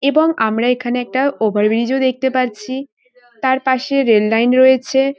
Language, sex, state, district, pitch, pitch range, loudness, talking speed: Bengali, female, West Bengal, North 24 Parganas, 255 Hz, 235-265 Hz, -15 LUFS, 160 wpm